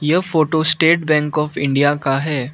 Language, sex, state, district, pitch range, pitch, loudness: Hindi, male, Arunachal Pradesh, Lower Dibang Valley, 145-160 Hz, 150 Hz, -16 LUFS